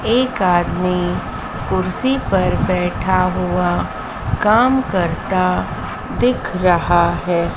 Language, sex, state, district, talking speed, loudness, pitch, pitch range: Hindi, female, Madhya Pradesh, Dhar, 85 wpm, -17 LUFS, 180 Hz, 175-210 Hz